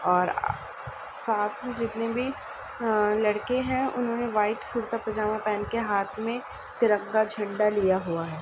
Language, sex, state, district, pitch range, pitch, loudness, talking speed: Hindi, female, Uttar Pradesh, Ghazipur, 210-235 Hz, 215 Hz, -27 LUFS, 150 wpm